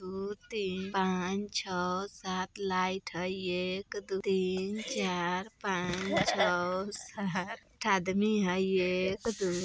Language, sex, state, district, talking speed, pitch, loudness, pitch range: Bajjika, female, Bihar, Vaishali, 125 wpm, 190 Hz, -32 LUFS, 185-200 Hz